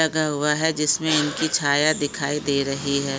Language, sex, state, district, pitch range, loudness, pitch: Hindi, female, Bihar, Araria, 140-155 Hz, -21 LUFS, 150 Hz